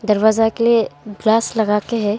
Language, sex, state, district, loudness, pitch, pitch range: Hindi, female, Arunachal Pradesh, Longding, -17 LUFS, 220 Hz, 210-230 Hz